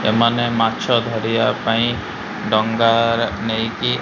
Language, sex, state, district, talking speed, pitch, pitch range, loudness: Odia, male, Odisha, Malkangiri, 105 wpm, 115 Hz, 110-115 Hz, -18 LUFS